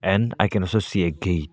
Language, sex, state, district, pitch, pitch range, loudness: English, male, Arunachal Pradesh, Lower Dibang Valley, 95 Hz, 85-105 Hz, -23 LUFS